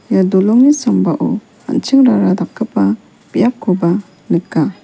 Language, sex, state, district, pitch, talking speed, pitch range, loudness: Garo, female, Meghalaya, West Garo Hills, 210 Hz, 85 wpm, 185-245 Hz, -14 LUFS